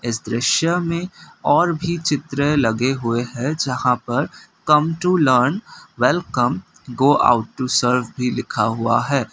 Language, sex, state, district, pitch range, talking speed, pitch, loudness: Hindi, male, Assam, Kamrup Metropolitan, 120-150 Hz, 150 wpm, 135 Hz, -19 LUFS